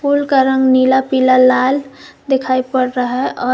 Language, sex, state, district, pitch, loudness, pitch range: Hindi, female, Jharkhand, Garhwa, 260 Hz, -14 LUFS, 255-270 Hz